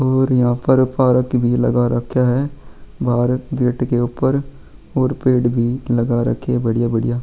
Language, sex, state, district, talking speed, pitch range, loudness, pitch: Hindi, male, Chhattisgarh, Sukma, 155 wpm, 120-130 Hz, -18 LUFS, 125 Hz